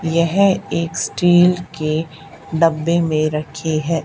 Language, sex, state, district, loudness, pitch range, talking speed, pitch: Hindi, male, Haryana, Charkhi Dadri, -17 LUFS, 155-170 Hz, 120 wpm, 165 Hz